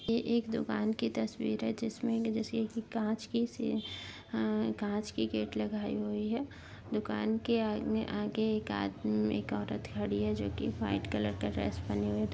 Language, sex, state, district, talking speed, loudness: Hindi, female, Uttar Pradesh, Jyotiba Phule Nagar, 160 wpm, -34 LUFS